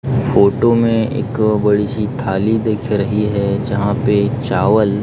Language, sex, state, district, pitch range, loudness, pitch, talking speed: Hindi, male, Maharashtra, Gondia, 105-115 Hz, -16 LUFS, 105 Hz, 145 wpm